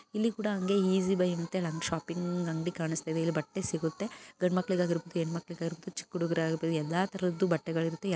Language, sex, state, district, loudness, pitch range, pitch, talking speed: Kannada, female, Karnataka, Bijapur, -32 LUFS, 165-185 Hz, 175 Hz, 170 wpm